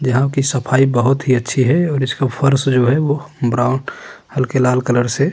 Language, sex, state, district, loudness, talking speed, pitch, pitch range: Hindi, male, Uttarakhand, Tehri Garhwal, -16 LUFS, 215 wpm, 130 Hz, 125-140 Hz